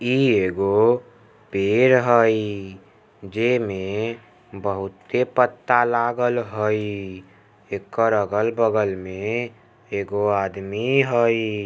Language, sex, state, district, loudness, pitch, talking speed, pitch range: Maithili, male, Bihar, Samastipur, -21 LUFS, 110 Hz, 80 wpm, 100-120 Hz